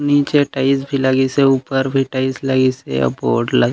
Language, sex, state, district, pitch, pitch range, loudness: Chhattisgarhi, male, Chhattisgarh, Raigarh, 135 Hz, 130-140 Hz, -16 LUFS